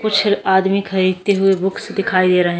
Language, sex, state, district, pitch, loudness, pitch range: Hindi, female, Goa, North and South Goa, 195 Hz, -16 LUFS, 185-200 Hz